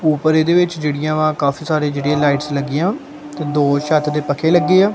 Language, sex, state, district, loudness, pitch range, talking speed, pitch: Punjabi, male, Punjab, Kapurthala, -17 LUFS, 145-165 Hz, 195 wpm, 155 Hz